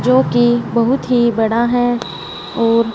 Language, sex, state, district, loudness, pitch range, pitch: Hindi, female, Punjab, Fazilka, -15 LUFS, 230-245 Hz, 235 Hz